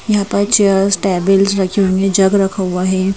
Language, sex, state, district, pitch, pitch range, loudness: Hindi, female, Madhya Pradesh, Bhopal, 195 Hz, 190-200 Hz, -13 LUFS